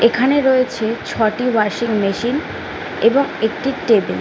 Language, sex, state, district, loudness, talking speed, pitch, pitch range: Bengali, female, West Bengal, Jhargram, -17 LUFS, 130 wpm, 235 Hz, 220-260 Hz